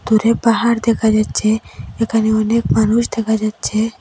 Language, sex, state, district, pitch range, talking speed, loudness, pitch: Bengali, female, Assam, Hailakandi, 220-230 Hz, 135 wpm, -16 LUFS, 225 Hz